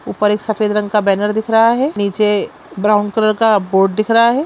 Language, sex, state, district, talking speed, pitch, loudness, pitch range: Hindi, female, Bihar, Lakhisarai, 230 wpm, 210 Hz, -14 LUFS, 205-220 Hz